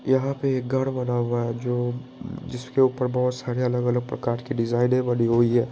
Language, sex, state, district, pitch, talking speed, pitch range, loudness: Hindi, male, Bihar, Saharsa, 125 Hz, 200 wpm, 120-130 Hz, -24 LUFS